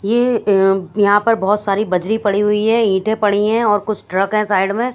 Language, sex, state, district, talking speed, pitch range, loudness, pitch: Hindi, female, Haryana, Charkhi Dadri, 240 wpm, 200-220 Hz, -16 LUFS, 210 Hz